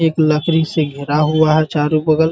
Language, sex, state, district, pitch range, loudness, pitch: Hindi, male, Bihar, Muzaffarpur, 150-160 Hz, -15 LUFS, 155 Hz